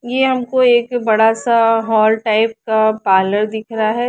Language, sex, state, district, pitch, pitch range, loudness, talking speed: Hindi, female, Chandigarh, Chandigarh, 225 Hz, 220-240 Hz, -15 LUFS, 190 wpm